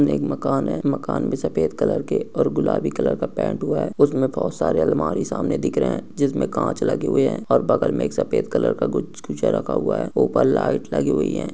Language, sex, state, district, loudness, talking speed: Hindi, male, Uttar Pradesh, Etah, -21 LUFS, 225 wpm